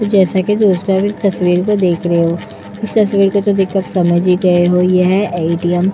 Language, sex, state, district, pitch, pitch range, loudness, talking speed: Hindi, female, Uttar Pradesh, Etah, 185 Hz, 180-200 Hz, -13 LUFS, 200 wpm